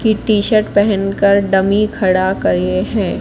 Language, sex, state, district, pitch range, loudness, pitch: Hindi, female, Madhya Pradesh, Katni, 190-210 Hz, -14 LUFS, 200 Hz